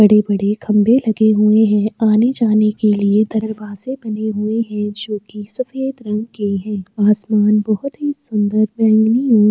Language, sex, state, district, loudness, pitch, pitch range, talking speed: Hindi, female, Bihar, Kishanganj, -16 LUFS, 215 Hz, 210-225 Hz, 160 wpm